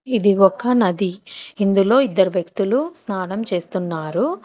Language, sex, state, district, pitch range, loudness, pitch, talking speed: Telugu, female, Telangana, Hyderabad, 185-245 Hz, -19 LUFS, 200 Hz, 110 wpm